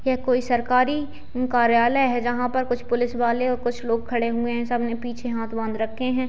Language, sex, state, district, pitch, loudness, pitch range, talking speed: Hindi, female, Bihar, Jahanabad, 240 Hz, -23 LUFS, 235-250 Hz, 220 wpm